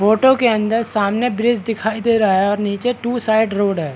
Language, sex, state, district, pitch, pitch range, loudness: Hindi, male, Bihar, Araria, 220 Hz, 205-235 Hz, -17 LUFS